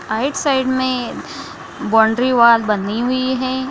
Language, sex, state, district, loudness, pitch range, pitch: Hindi, female, Bihar, Samastipur, -16 LUFS, 225-260 Hz, 255 Hz